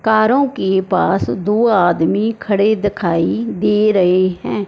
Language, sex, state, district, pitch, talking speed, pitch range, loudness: Hindi, female, Punjab, Fazilka, 205 Hz, 130 wpm, 185-220 Hz, -15 LUFS